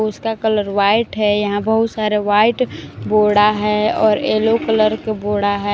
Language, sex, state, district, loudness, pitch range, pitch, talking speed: Hindi, female, Jharkhand, Palamu, -16 LUFS, 205-220 Hz, 215 Hz, 165 wpm